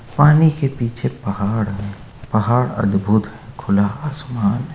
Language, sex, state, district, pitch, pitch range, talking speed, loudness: Hindi, male, Chhattisgarh, Raigarh, 120 Hz, 100-135 Hz, 125 wpm, -18 LUFS